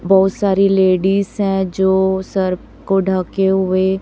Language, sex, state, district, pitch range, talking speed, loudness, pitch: Hindi, female, Chhattisgarh, Raipur, 190-195 Hz, 135 wpm, -16 LUFS, 190 Hz